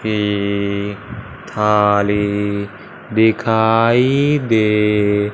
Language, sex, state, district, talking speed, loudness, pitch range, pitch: Hindi, male, Punjab, Fazilka, 45 wpm, -16 LUFS, 100-110 Hz, 105 Hz